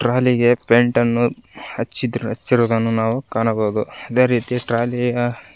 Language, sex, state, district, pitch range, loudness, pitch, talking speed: Kannada, male, Karnataka, Koppal, 115-125 Hz, -19 LUFS, 120 Hz, 130 wpm